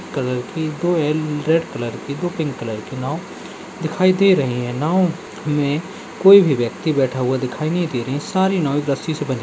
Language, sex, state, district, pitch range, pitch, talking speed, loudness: Hindi, male, Uttar Pradesh, Ghazipur, 130-175 Hz, 150 Hz, 225 wpm, -19 LUFS